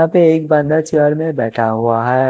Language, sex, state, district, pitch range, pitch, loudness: Hindi, male, Punjab, Kapurthala, 115-160 Hz, 150 Hz, -14 LUFS